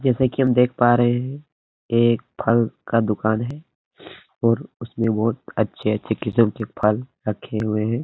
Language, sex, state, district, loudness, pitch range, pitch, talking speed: Hindi, male, Bihar, Araria, -21 LUFS, 110-125 Hz, 115 Hz, 165 wpm